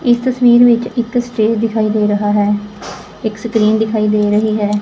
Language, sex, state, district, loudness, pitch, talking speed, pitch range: Punjabi, female, Punjab, Fazilka, -14 LUFS, 215 Hz, 185 wpm, 210-240 Hz